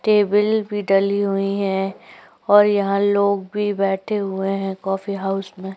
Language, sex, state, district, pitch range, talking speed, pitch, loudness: Hindi, female, Uttar Pradesh, Jyotiba Phule Nagar, 195-205 Hz, 155 wpm, 200 Hz, -20 LUFS